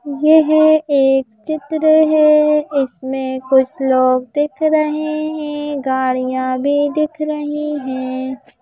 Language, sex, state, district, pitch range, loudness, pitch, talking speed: Hindi, female, Madhya Pradesh, Bhopal, 260-305 Hz, -16 LUFS, 290 Hz, 105 wpm